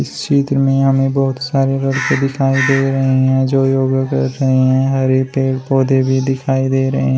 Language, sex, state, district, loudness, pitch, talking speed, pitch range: Hindi, male, Uttar Pradesh, Shamli, -15 LUFS, 135 Hz, 200 wpm, 130-135 Hz